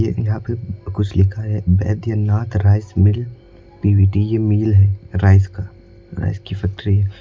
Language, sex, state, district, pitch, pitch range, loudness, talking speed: Hindi, male, Uttar Pradesh, Lucknow, 100 Hz, 95-110 Hz, -17 LUFS, 150 wpm